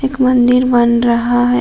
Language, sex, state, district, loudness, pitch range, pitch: Hindi, female, Jharkhand, Palamu, -12 LUFS, 240-255 Hz, 245 Hz